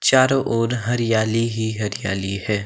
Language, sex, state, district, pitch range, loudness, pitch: Hindi, male, Himachal Pradesh, Shimla, 105-120 Hz, -21 LUFS, 115 Hz